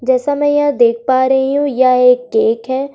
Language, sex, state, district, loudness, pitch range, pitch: Hindi, female, Uttar Pradesh, Jyotiba Phule Nagar, -13 LUFS, 250-280 Hz, 260 Hz